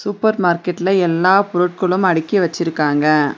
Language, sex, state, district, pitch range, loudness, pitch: Tamil, female, Tamil Nadu, Nilgiris, 165-190 Hz, -16 LUFS, 180 Hz